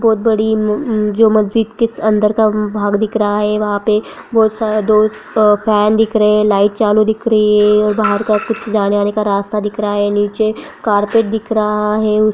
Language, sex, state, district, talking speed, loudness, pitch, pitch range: Hindi, female, Bihar, Bhagalpur, 205 wpm, -14 LUFS, 215 Hz, 210-220 Hz